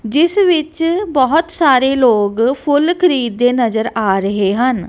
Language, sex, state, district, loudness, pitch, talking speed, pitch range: Punjabi, female, Punjab, Kapurthala, -14 LUFS, 260 Hz, 145 wpm, 230-325 Hz